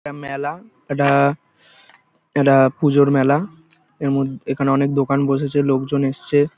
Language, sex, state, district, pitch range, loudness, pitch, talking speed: Bengali, male, West Bengal, Paschim Medinipur, 140-145 Hz, -18 LUFS, 140 Hz, 130 wpm